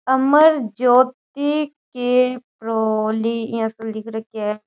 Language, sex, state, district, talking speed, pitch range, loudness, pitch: Rajasthani, female, Rajasthan, Nagaur, 115 wpm, 220-260 Hz, -19 LUFS, 245 Hz